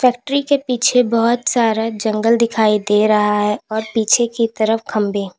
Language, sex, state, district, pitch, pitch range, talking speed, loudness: Hindi, female, Uttar Pradesh, Lalitpur, 225 Hz, 215-240 Hz, 180 wpm, -16 LUFS